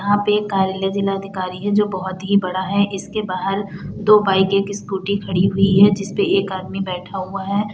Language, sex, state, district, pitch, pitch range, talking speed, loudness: Hindi, female, Uttar Pradesh, Budaun, 195 Hz, 190-200 Hz, 200 wpm, -19 LUFS